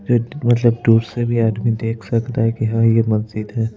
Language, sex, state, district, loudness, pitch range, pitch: Hindi, male, Madhya Pradesh, Bhopal, -18 LUFS, 115-120 Hz, 115 Hz